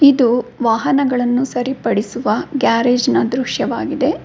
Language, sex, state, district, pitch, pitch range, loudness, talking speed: Kannada, female, Karnataka, Bangalore, 245 Hz, 240-265 Hz, -16 LUFS, 100 wpm